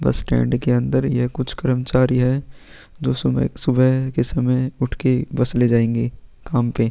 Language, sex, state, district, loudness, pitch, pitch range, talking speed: Hindi, male, Chhattisgarh, Sukma, -19 LUFS, 125 Hz, 120-130 Hz, 165 wpm